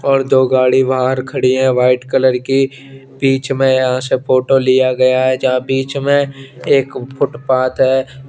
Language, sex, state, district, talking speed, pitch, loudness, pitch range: Hindi, male, Chandigarh, Chandigarh, 160 wpm, 130 Hz, -14 LUFS, 130-135 Hz